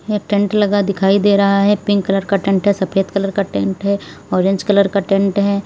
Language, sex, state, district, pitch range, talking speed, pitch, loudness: Hindi, female, Uttar Pradesh, Lalitpur, 195-200 Hz, 235 wpm, 200 Hz, -16 LUFS